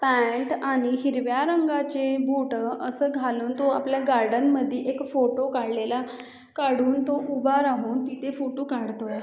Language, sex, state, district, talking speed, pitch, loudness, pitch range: Marathi, female, Maharashtra, Aurangabad, 135 wpm, 265 Hz, -25 LUFS, 250-275 Hz